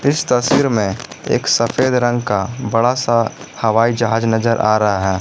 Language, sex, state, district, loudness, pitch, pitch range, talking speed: Hindi, male, Jharkhand, Garhwa, -16 LUFS, 115 Hz, 110-125 Hz, 170 wpm